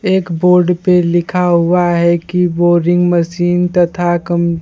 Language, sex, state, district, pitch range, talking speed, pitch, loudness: Hindi, male, Bihar, Kaimur, 170-180 Hz, 145 wpm, 175 Hz, -13 LUFS